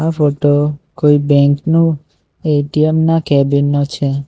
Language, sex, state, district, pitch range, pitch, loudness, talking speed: Gujarati, male, Gujarat, Valsad, 140-155 Hz, 145 Hz, -14 LUFS, 125 wpm